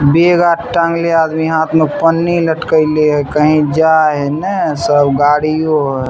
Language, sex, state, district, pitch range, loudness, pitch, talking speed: Maithili, male, Bihar, Samastipur, 150-165 Hz, -12 LUFS, 155 Hz, 155 wpm